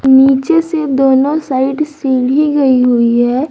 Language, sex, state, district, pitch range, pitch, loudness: Hindi, female, Jharkhand, Garhwa, 260-300 Hz, 270 Hz, -12 LUFS